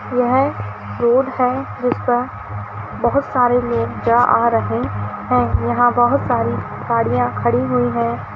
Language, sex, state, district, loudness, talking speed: Hindi, female, Bihar, East Champaran, -18 LUFS, 130 wpm